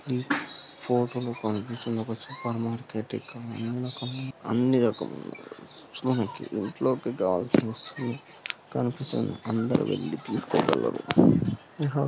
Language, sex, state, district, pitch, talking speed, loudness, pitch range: Telugu, male, Telangana, Karimnagar, 120 Hz, 60 wpm, -28 LUFS, 115-125 Hz